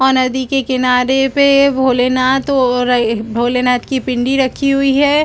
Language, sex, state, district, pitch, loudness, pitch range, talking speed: Hindi, female, Chhattisgarh, Bilaspur, 260 Hz, -13 LUFS, 250-270 Hz, 160 wpm